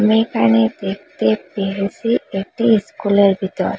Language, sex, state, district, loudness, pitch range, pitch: Bengali, female, Assam, Hailakandi, -17 LUFS, 190-215 Hz, 195 Hz